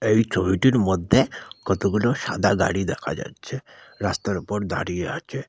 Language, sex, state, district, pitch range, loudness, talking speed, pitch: Bengali, male, West Bengal, Malda, 95-110 Hz, -23 LUFS, 130 wpm, 100 Hz